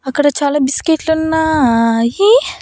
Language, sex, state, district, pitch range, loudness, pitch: Telugu, female, Andhra Pradesh, Annamaya, 265-320 Hz, -13 LUFS, 295 Hz